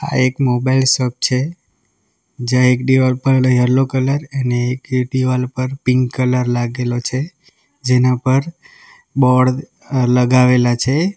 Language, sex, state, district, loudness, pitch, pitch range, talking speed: Gujarati, male, Gujarat, Valsad, -16 LUFS, 130 Hz, 125-135 Hz, 130 wpm